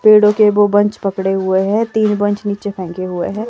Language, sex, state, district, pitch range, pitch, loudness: Hindi, female, Himachal Pradesh, Shimla, 190-210 Hz, 205 Hz, -15 LUFS